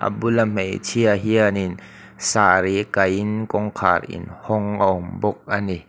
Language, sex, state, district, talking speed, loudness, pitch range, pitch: Mizo, male, Mizoram, Aizawl, 145 wpm, -20 LUFS, 95-105 Hz, 100 Hz